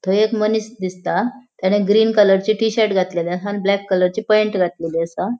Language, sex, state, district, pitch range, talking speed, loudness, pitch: Konkani, female, Goa, North and South Goa, 185-220 Hz, 190 wpm, -18 LUFS, 205 Hz